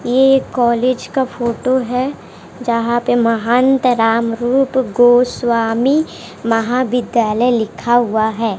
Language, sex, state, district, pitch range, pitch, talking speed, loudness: Hindi, female, Bihar, West Champaran, 230-255 Hz, 240 Hz, 105 wpm, -15 LUFS